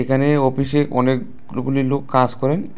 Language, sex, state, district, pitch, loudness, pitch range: Bengali, male, Tripura, West Tripura, 135 Hz, -19 LUFS, 130-140 Hz